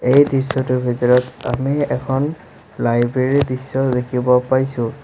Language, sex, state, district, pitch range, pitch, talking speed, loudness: Assamese, male, Assam, Sonitpur, 125-135 Hz, 130 Hz, 105 wpm, -18 LUFS